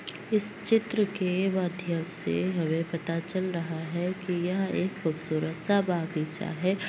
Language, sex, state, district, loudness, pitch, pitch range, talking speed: Hindi, female, Uttar Pradesh, Ghazipur, -29 LUFS, 180 Hz, 165-190 Hz, 150 wpm